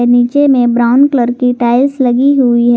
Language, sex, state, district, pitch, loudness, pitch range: Hindi, female, Jharkhand, Garhwa, 245 Hz, -10 LUFS, 240-265 Hz